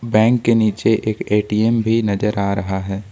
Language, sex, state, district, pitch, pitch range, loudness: Hindi, male, Jharkhand, Ranchi, 110 Hz, 100-115 Hz, -17 LUFS